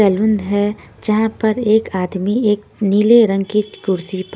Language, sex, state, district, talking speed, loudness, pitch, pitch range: Hindi, female, Punjab, Kapurthala, 135 wpm, -16 LUFS, 210 Hz, 195-220 Hz